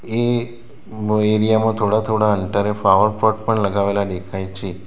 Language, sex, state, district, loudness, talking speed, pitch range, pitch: Gujarati, male, Gujarat, Valsad, -18 LUFS, 150 wpm, 100-110 Hz, 105 Hz